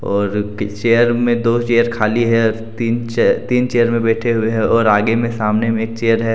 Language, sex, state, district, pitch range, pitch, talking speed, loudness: Hindi, male, Jharkhand, Deoghar, 110-120 Hz, 115 Hz, 210 wpm, -16 LUFS